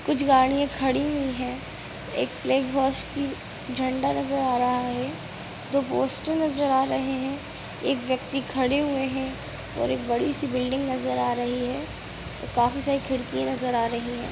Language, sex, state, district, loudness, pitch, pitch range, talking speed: Hindi, female, Bihar, Sitamarhi, -26 LUFS, 265 Hz, 250-275 Hz, 170 wpm